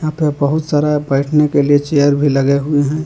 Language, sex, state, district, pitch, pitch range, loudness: Hindi, male, Jharkhand, Palamu, 145 Hz, 145-150 Hz, -14 LUFS